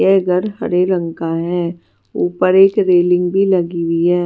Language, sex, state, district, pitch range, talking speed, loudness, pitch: Hindi, female, Bihar, West Champaran, 170-185 Hz, 185 wpm, -15 LUFS, 180 Hz